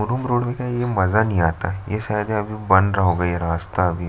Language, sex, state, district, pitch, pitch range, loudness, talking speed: Hindi, male, Chhattisgarh, Jashpur, 105 Hz, 90-110 Hz, -21 LUFS, 220 wpm